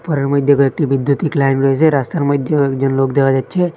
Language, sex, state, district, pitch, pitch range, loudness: Bengali, male, Assam, Hailakandi, 140 Hz, 135-150 Hz, -15 LUFS